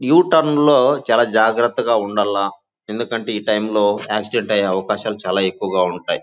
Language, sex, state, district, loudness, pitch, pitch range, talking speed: Telugu, male, Andhra Pradesh, Chittoor, -17 LUFS, 105 Hz, 100-115 Hz, 145 wpm